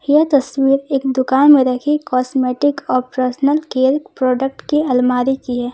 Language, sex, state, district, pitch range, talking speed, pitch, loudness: Hindi, female, Jharkhand, Ranchi, 255-280 Hz, 165 wpm, 265 Hz, -16 LUFS